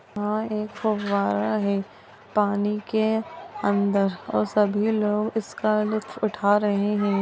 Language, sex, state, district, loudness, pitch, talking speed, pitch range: Hindi, female, Bihar, Kishanganj, -24 LUFS, 210 Hz, 125 wpm, 200-215 Hz